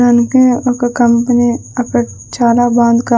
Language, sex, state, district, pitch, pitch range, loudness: Telugu, female, Andhra Pradesh, Sri Satya Sai, 240 Hz, 235-245 Hz, -12 LUFS